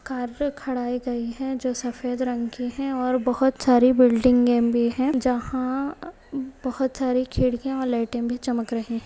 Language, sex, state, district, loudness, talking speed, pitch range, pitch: Hindi, female, Uttar Pradesh, Hamirpur, -23 LUFS, 160 wpm, 245-265 Hz, 255 Hz